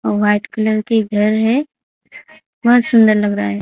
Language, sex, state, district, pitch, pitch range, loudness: Hindi, female, Odisha, Khordha, 215 Hz, 210-230 Hz, -15 LUFS